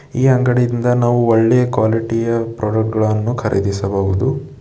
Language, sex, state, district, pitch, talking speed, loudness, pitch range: Kannada, male, Karnataka, Bidar, 115 Hz, 115 wpm, -16 LUFS, 110-125 Hz